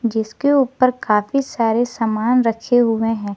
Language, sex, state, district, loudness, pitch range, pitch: Hindi, female, Jharkhand, Garhwa, -18 LUFS, 225-250 Hz, 230 Hz